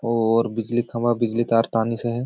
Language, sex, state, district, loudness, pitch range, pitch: Sadri, male, Chhattisgarh, Jashpur, -22 LUFS, 115-120 Hz, 115 Hz